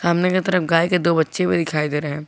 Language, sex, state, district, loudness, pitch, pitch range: Hindi, male, Jharkhand, Garhwa, -19 LUFS, 170 Hz, 155-180 Hz